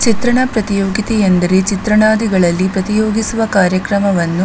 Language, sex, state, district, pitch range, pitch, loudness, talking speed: Kannada, female, Karnataka, Dakshina Kannada, 190-220 Hz, 200 Hz, -13 LUFS, 95 wpm